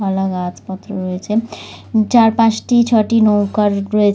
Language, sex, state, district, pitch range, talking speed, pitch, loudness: Bengali, female, West Bengal, Dakshin Dinajpur, 195-225 Hz, 130 wpm, 210 Hz, -15 LUFS